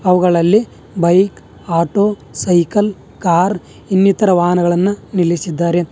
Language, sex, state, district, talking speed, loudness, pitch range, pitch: Kannada, male, Karnataka, Bangalore, 80 wpm, -15 LUFS, 170-195 Hz, 180 Hz